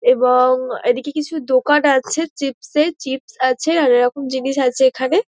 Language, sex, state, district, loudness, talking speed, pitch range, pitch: Bengali, female, West Bengal, Dakshin Dinajpur, -17 LUFS, 160 wpm, 255-305 Hz, 270 Hz